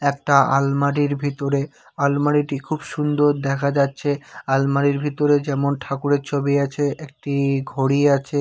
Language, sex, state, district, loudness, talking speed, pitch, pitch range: Bengali, male, West Bengal, Cooch Behar, -20 LUFS, 120 wpm, 140 Hz, 140-145 Hz